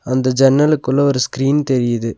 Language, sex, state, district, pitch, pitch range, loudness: Tamil, male, Tamil Nadu, Nilgiris, 135 Hz, 130-140 Hz, -15 LUFS